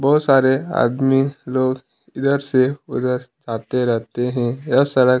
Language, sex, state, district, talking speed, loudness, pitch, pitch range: Hindi, male, Chhattisgarh, Kabirdham, 140 wpm, -19 LUFS, 130 Hz, 125-140 Hz